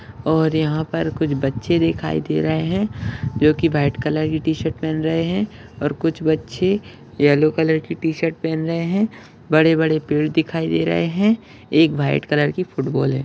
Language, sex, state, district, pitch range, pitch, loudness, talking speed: Hindi, male, Maharashtra, Solapur, 140-160 Hz, 155 Hz, -20 LUFS, 185 wpm